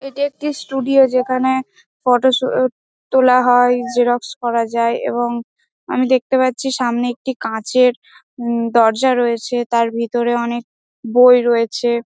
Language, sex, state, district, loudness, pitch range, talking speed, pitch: Bengali, female, West Bengal, Dakshin Dinajpur, -16 LUFS, 235-260 Hz, 130 wpm, 245 Hz